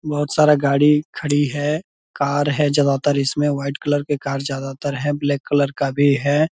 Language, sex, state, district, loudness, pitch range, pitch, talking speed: Hindi, male, Bihar, Purnia, -19 LUFS, 140-145 Hz, 145 Hz, 185 wpm